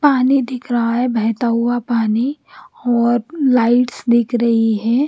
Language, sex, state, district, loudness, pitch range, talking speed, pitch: Hindi, female, Bihar, Patna, -16 LUFS, 235-255 Hz, 140 wpm, 240 Hz